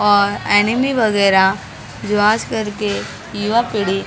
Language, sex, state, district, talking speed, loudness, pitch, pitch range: Hindi, female, Maharashtra, Mumbai Suburban, 150 wpm, -16 LUFS, 210 Hz, 200-220 Hz